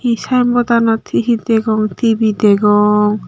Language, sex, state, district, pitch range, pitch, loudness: Chakma, female, Tripura, Unakoti, 210-235 Hz, 225 Hz, -13 LUFS